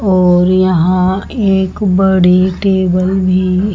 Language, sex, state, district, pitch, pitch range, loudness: Hindi, female, Haryana, Rohtak, 185 Hz, 185-190 Hz, -11 LUFS